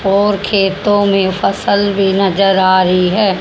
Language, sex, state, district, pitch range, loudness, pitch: Hindi, male, Haryana, Jhajjar, 190-200 Hz, -12 LUFS, 195 Hz